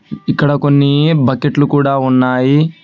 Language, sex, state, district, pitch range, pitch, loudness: Telugu, male, Telangana, Hyderabad, 135-145 Hz, 145 Hz, -12 LUFS